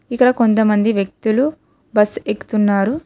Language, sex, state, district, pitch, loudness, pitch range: Telugu, female, Telangana, Hyderabad, 220 Hz, -17 LUFS, 210-250 Hz